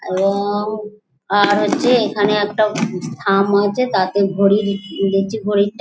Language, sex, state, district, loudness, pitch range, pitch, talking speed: Bengali, female, West Bengal, Dakshin Dinajpur, -17 LUFS, 195-210 Hz, 205 Hz, 145 wpm